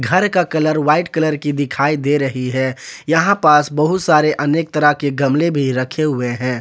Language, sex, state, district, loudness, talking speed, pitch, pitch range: Hindi, male, Jharkhand, Palamu, -16 LUFS, 200 wpm, 150 Hz, 135-155 Hz